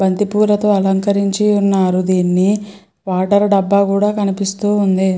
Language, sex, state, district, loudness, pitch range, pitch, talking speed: Telugu, female, Andhra Pradesh, Chittoor, -15 LUFS, 190-205 Hz, 200 Hz, 95 wpm